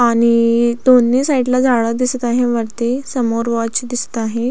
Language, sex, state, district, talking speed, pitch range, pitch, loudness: Marathi, female, Maharashtra, Solapur, 145 wpm, 235-250 Hz, 240 Hz, -15 LUFS